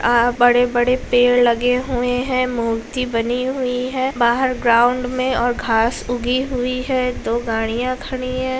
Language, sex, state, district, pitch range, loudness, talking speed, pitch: Hindi, female, Bihar, Lakhisarai, 240-255 Hz, -18 LUFS, 155 wpm, 245 Hz